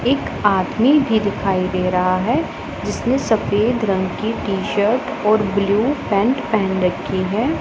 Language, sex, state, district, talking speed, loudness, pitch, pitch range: Hindi, female, Punjab, Pathankot, 150 wpm, -18 LUFS, 210 Hz, 195-240 Hz